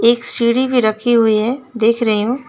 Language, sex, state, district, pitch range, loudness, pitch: Hindi, female, West Bengal, Alipurduar, 225-245 Hz, -15 LUFS, 235 Hz